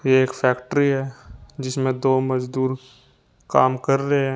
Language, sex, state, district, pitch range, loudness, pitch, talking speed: Hindi, male, Uttar Pradesh, Shamli, 130-135 Hz, -21 LUFS, 130 Hz, 150 wpm